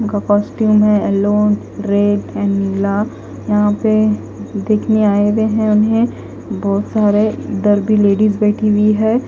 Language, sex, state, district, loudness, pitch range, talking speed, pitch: Hindi, female, Punjab, Kapurthala, -15 LUFS, 205-215 Hz, 140 wpm, 210 Hz